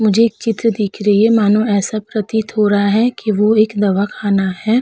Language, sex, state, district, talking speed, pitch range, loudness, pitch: Hindi, female, Uttar Pradesh, Hamirpur, 200 wpm, 205-220 Hz, -15 LUFS, 215 Hz